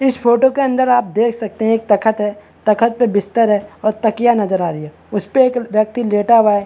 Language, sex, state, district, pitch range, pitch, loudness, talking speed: Hindi, male, Chhattisgarh, Bastar, 210-240 Hz, 220 Hz, -15 LUFS, 245 wpm